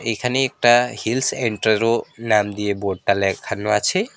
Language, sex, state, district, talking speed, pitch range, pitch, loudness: Bengali, male, West Bengal, Alipurduar, 130 wpm, 105-125 Hz, 115 Hz, -19 LUFS